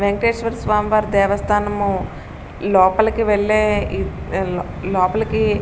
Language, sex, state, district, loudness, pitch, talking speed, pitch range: Telugu, female, Andhra Pradesh, Srikakulam, -18 LUFS, 205 Hz, 105 wpm, 190-215 Hz